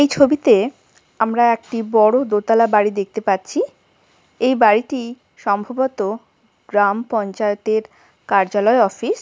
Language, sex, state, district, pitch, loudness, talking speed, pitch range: Bengali, female, West Bengal, Jhargram, 220 Hz, -18 LUFS, 110 wpm, 210-240 Hz